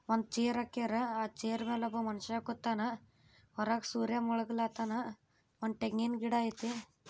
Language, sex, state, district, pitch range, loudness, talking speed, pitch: Kannada, female, Karnataka, Bijapur, 225-235 Hz, -36 LUFS, 145 wpm, 230 Hz